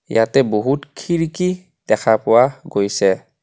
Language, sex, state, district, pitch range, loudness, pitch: Assamese, male, Assam, Kamrup Metropolitan, 110-165 Hz, -17 LUFS, 135 Hz